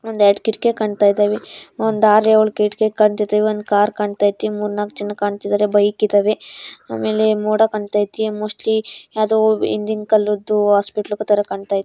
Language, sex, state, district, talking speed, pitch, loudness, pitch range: Kannada, female, Karnataka, Gulbarga, 110 wpm, 210 Hz, -17 LUFS, 205-215 Hz